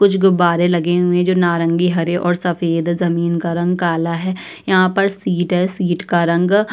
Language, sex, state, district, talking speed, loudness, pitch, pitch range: Hindi, female, Uttar Pradesh, Budaun, 195 wpm, -16 LUFS, 175 Hz, 170-185 Hz